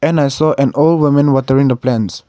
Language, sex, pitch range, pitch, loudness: English, male, 130-145 Hz, 140 Hz, -13 LUFS